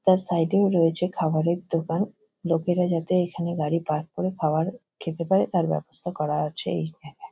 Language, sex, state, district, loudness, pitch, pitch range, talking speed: Bengali, female, West Bengal, Kolkata, -25 LUFS, 170 Hz, 160-180 Hz, 170 wpm